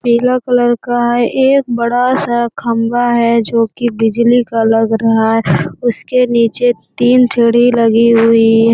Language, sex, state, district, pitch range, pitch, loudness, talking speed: Hindi, female, Bihar, Jamui, 230-245 Hz, 235 Hz, -12 LUFS, 160 wpm